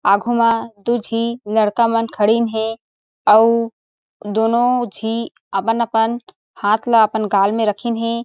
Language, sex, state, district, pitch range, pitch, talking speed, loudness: Chhattisgarhi, female, Chhattisgarh, Sarguja, 215-235 Hz, 225 Hz, 130 wpm, -17 LUFS